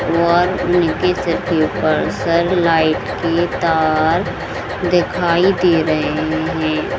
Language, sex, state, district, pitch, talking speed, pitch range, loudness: Hindi, female, Bihar, Saran, 170 Hz, 120 wpm, 160-175 Hz, -16 LUFS